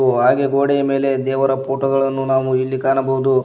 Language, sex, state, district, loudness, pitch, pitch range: Kannada, male, Karnataka, Koppal, -17 LUFS, 135 Hz, 130-135 Hz